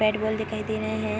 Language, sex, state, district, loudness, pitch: Hindi, female, Bihar, Darbhanga, -27 LUFS, 215 Hz